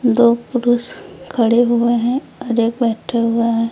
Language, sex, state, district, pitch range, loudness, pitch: Hindi, female, Uttar Pradesh, Lucknow, 230-240 Hz, -17 LUFS, 235 Hz